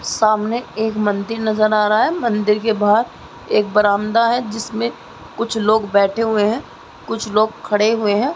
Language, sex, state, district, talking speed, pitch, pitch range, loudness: Hindi, female, Chhattisgarh, Raigarh, 170 wpm, 215 Hz, 210-230 Hz, -17 LUFS